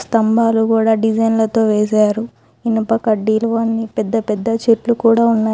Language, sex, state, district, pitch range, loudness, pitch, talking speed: Telugu, female, Telangana, Hyderabad, 220-230 Hz, -15 LUFS, 225 Hz, 130 wpm